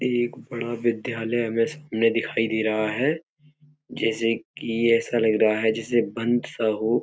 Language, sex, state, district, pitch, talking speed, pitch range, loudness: Hindi, male, Uttar Pradesh, Etah, 115 Hz, 160 wpm, 115-120 Hz, -24 LUFS